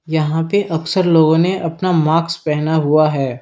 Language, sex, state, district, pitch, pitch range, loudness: Hindi, male, Uttar Pradesh, Lalitpur, 160 Hz, 155-170 Hz, -15 LUFS